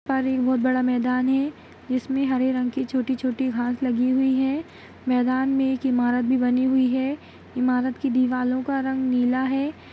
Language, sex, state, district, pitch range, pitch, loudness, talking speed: Kumaoni, female, Uttarakhand, Tehri Garhwal, 250-265 Hz, 255 Hz, -23 LUFS, 180 wpm